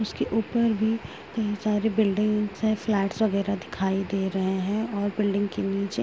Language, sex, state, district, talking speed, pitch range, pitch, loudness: Hindi, female, Uttar Pradesh, Gorakhpur, 180 wpm, 195-220 Hz, 205 Hz, -26 LUFS